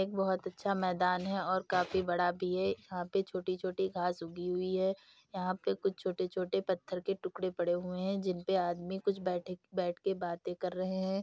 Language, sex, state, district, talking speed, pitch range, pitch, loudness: Hindi, female, Uttar Pradesh, Jyotiba Phule Nagar, 200 wpm, 180-190 Hz, 185 Hz, -35 LUFS